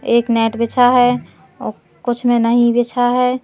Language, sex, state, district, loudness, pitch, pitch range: Hindi, female, Madhya Pradesh, Katni, -15 LUFS, 240 Hz, 235-245 Hz